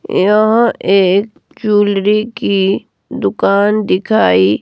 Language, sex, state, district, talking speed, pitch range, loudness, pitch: Hindi, female, Himachal Pradesh, Shimla, 80 wpm, 195-215 Hz, -13 LUFS, 205 Hz